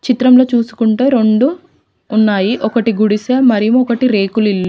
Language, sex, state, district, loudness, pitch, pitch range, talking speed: Telugu, female, Telangana, Mahabubabad, -12 LUFS, 230 Hz, 215-255 Hz, 130 wpm